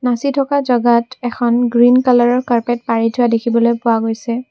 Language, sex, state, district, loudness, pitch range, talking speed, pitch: Assamese, female, Assam, Kamrup Metropolitan, -15 LUFS, 235-250 Hz, 160 wpm, 240 Hz